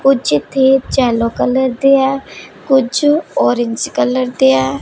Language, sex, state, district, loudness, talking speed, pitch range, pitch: Punjabi, female, Punjab, Pathankot, -14 LUFS, 135 wpm, 235-270 Hz, 260 Hz